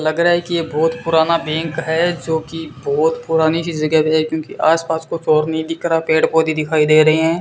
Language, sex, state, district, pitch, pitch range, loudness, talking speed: Hindi, male, Rajasthan, Bikaner, 160 Hz, 155-165 Hz, -16 LUFS, 235 wpm